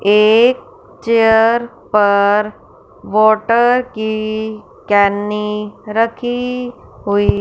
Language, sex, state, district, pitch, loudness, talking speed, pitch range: Hindi, female, Punjab, Fazilka, 220 Hz, -14 LUFS, 65 wpm, 210-240 Hz